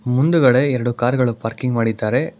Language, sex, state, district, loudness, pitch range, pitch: Kannada, male, Karnataka, Bangalore, -18 LUFS, 115-130 Hz, 125 Hz